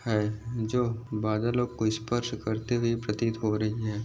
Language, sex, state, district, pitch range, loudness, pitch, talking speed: Hindi, male, Maharashtra, Aurangabad, 110-120 Hz, -29 LUFS, 110 Hz, 165 wpm